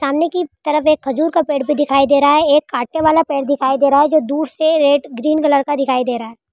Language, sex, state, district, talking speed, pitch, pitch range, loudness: Hindi, female, Rajasthan, Churu, 265 wpm, 290 Hz, 275-310 Hz, -15 LUFS